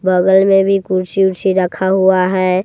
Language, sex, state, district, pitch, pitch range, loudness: Hindi, male, Bihar, West Champaran, 190 Hz, 185-190 Hz, -13 LUFS